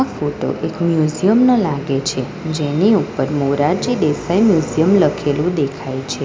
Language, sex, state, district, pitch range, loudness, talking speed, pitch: Gujarati, female, Gujarat, Valsad, 145-195 Hz, -17 LUFS, 135 wpm, 155 Hz